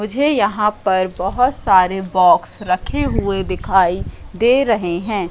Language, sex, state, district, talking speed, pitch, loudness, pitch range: Hindi, female, Madhya Pradesh, Katni, 135 wpm, 195 Hz, -17 LUFS, 185-225 Hz